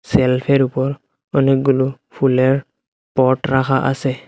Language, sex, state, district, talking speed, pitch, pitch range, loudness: Bengali, male, Assam, Hailakandi, 100 wpm, 135 Hz, 130-135 Hz, -17 LUFS